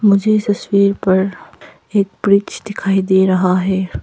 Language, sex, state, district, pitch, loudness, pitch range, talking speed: Hindi, female, Arunachal Pradesh, Papum Pare, 195 Hz, -15 LUFS, 190-200 Hz, 120 wpm